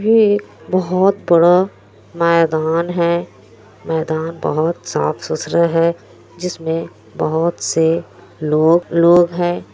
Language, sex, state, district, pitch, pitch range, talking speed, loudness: Hindi, female, Bihar, Kishanganj, 170 Hz, 160-175 Hz, 75 wpm, -16 LUFS